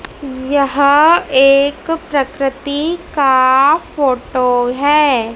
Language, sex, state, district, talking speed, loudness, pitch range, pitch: Hindi, male, Madhya Pradesh, Dhar, 65 wpm, -13 LUFS, 265-295 Hz, 280 Hz